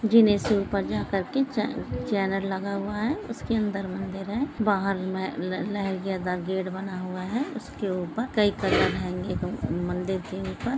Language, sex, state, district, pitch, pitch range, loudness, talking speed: Hindi, female, Maharashtra, Dhule, 195 Hz, 190-215 Hz, -27 LUFS, 155 wpm